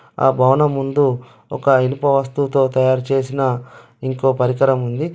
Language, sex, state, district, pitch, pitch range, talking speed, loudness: Telugu, male, Telangana, Adilabad, 135 Hz, 130-140 Hz, 105 wpm, -17 LUFS